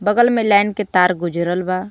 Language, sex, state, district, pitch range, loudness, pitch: Bhojpuri, female, Jharkhand, Palamu, 180-210 Hz, -16 LUFS, 190 Hz